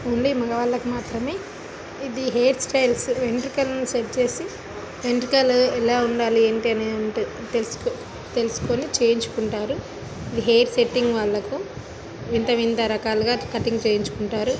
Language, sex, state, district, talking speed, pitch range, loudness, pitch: Telugu, female, Telangana, Nalgonda, 105 wpm, 225-250 Hz, -22 LUFS, 235 Hz